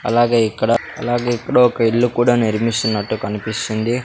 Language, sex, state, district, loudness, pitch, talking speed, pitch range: Telugu, male, Andhra Pradesh, Sri Satya Sai, -17 LUFS, 115 Hz, 135 wpm, 110-120 Hz